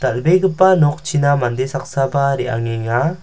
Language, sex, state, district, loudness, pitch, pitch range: Garo, male, Meghalaya, South Garo Hills, -16 LUFS, 140 Hz, 130-160 Hz